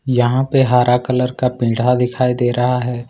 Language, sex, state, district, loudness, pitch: Hindi, male, Jharkhand, Ranchi, -16 LUFS, 125 Hz